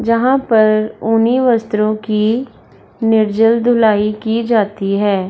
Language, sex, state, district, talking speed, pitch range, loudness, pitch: Hindi, female, Bihar, Darbhanga, 115 wpm, 215-230 Hz, -14 LUFS, 220 Hz